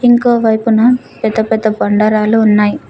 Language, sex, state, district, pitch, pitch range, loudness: Telugu, female, Telangana, Mahabubabad, 220 Hz, 215-235 Hz, -12 LUFS